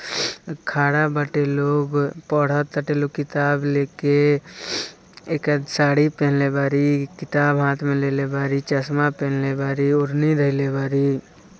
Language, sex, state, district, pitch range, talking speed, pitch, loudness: Bhojpuri, male, Bihar, East Champaran, 140-145 Hz, 110 wpm, 145 Hz, -21 LUFS